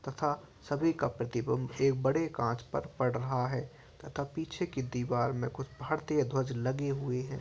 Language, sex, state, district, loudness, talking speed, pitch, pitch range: Hindi, male, Uttar Pradesh, Varanasi, -33 LUFS, 180 wpm, 135 Hz, 125-145 Hz